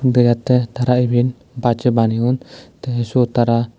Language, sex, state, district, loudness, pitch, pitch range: Chakma, male, Tripura, Dhalai, -17 LUFS, 120 Hz, 120-125 Hz